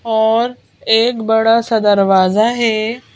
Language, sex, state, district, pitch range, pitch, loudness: Hindi, female, Madhya Pradesh, Bhopal, 220-230 Hz, 225 Hz, -14 LUFS